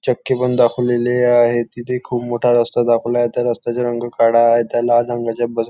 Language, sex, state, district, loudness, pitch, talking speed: Marathi, male, Maharashtra, Nagpur, -16 LUFS, 120 Hz, 210 wpm